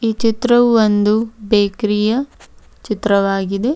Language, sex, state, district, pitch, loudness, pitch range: Kannada, female, Karnataka, Bidar, 215 Hz, -16 LUFS, 205-235 Hz